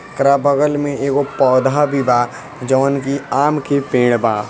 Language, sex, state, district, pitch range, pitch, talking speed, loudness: Hindi, male, Bihar, East Champaran, 130-145 Hz, 140 Hz, 175 wpm, -16 LUFS